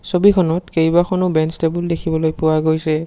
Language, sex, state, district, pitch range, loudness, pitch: Assamese, male, Assam, Sonitpur, 160-180 Hz, -17 LUFS, 165 Hz